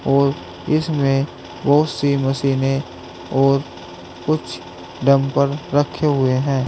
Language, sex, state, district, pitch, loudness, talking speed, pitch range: Hindi, male, Uttar Pradesh, Saharanpur, 140 Hz, -19 LUFS, 100 wpm, 135-145 Hz